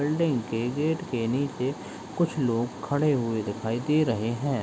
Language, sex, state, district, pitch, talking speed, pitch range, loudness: Hindi, male, Uttar Pradesh, Deoria, 130 Hz, 170 wpm, 115-150 Hz, -27 LUFS